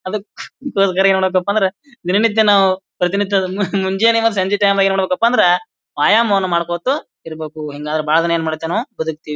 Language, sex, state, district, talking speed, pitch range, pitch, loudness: Kannada, male, Karnataka, Bijapur, 160 wpm, 170-210 Hz, 195 Hz, -16 LUFS